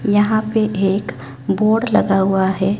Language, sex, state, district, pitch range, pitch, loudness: Hindi, male, Chhattisgarh, Raipur, 190-215 Hz, 200 Hz, -17 LUFS